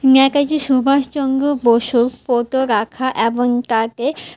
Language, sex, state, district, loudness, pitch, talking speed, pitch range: Bengali, female, Tripura, West Tripura, -16 LUFS, 260 Hz, 95 wpm, 240-275 Hz